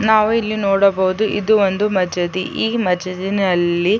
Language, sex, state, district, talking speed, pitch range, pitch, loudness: Kannada, female, Karnataka, Chamarajanagar, 135 wpm, 185-215 Hz, 195 Hz, -17 LUFS